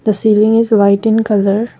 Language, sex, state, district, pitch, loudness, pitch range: English, female, Assam, Kamrup Metropolitan, 215 Hz, -12 LUFS, 205-225 Hz